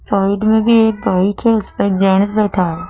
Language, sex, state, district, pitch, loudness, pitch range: Hindi, female, Madhya Pradesh, Dhar, 200 Hz, -14 LUFS, 190-220 Hz